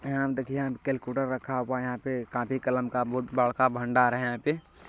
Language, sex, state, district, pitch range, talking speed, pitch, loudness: Hindi, male, Bihar, Bhagalpur, 125-135 Hz, 220 wpm, 130 Hz, -29 LUFS